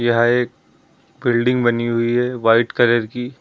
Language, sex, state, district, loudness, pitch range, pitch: Hindi, male, Uttar Pradesh, Lucknow, -18 LUFS, 115-125 Hz, 120 Hz